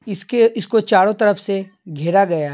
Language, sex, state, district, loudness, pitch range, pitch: Hindi, male, Bihar, Patna, -17 LUFS, 185-220 Hz, 200 Hz